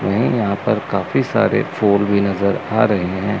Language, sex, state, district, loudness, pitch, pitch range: Hindi, male, Chandigarh, Chandigarh, -17 LUFS, 100 Hz, 95-105 Hz